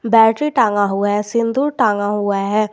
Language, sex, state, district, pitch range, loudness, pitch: Hindi, male, Jharkhand, Garhwa, 205-230 Hz, -16 LUFS, 215 Hz